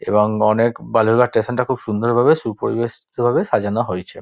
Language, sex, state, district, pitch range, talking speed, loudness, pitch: Bengali, male, West Bengal, Dakshin Dinajpur, 105-120 Hz, 170 wpm, -18 LUFS, 115 Hz